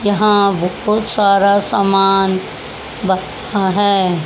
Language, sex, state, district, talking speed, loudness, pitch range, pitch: Hindi, male, Haryana, Rohtak, 85 wpm, -14 LUFS, 190-205 Hz, 200 Hz